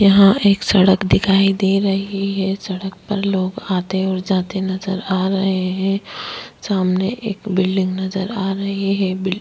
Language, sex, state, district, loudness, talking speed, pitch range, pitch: Hindi, female, Chhattisgarh, Korba, -18 LUFS, 165 wpm, 190-195 Hz, 195 Hz